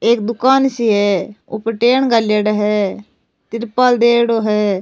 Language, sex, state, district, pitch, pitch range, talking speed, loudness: Rajasthani, female, Rajasthan, Nagaur, 225 Hz, 210-240 Hz, 135 wpm, -15 LUFS